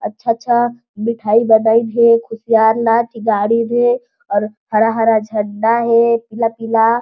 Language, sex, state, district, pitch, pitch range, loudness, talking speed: Chhattisgarhi, female, Chhattisgarh, Jashpur, 230 Hz, 220-235 Hz, -15 LUFS, 130 wpm